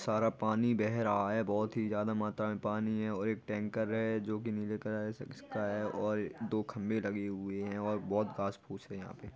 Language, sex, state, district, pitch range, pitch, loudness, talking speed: Hindi, male, Bihar, Jahanabad, 105-110 Hz, 105 Hz, -35 LUFS, 225 wpm